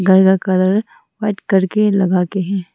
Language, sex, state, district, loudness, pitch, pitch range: Hindi, female, Arunachal Pradesh, Longding, -16 LUFS, 190 Hz, 185-205 Hz